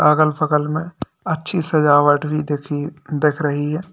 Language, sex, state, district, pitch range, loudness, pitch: Hindi, male, Uttar Pradesh, Lalitpur, 145-155 Hz, -18 LUFS, 150 Hz